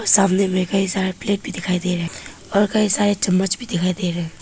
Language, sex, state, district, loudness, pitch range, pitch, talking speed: Hindi, female, Arunachal Pradesh, Papum Pare, -20 LUFS, 180-205 Hz, 190 Hz, 255 wpm